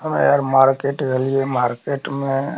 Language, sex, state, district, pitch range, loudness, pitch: Maithili, male, Bihar, Darbhanga, 135-140 Hz, -19 LUFS, 135 Hz